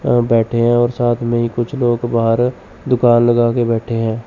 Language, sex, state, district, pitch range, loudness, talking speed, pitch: Hindi, male, Chandigarh, Chandigarh, 115-120 Hz, -15 LUFS, 210 wpm, 120 Hz